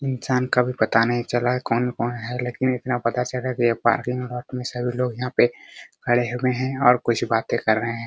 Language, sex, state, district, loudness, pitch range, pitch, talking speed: Hindi, male, Bihar, Araria, -22 LUFS, 120-125 Hz, 125 Hz, 255 wpm